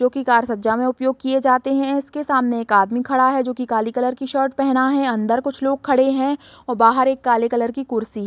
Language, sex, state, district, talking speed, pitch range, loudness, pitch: Hindi, female, Bihar, Gopalganj, 255 wpm, 235-270 Hz, -19 LUFS, 255 Hz